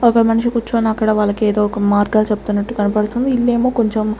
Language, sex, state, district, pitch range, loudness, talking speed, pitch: Telugu, female, Andhra Pradesh, Sri Satya Sai, 210-235 Hz, -16 LUFS, 155 wpm, 215 Hz